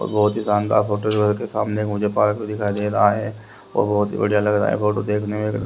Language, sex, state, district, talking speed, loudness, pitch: Hindi, male, Haryana, Rohtak, 210 wpm, -20 LUFS, 105 Hz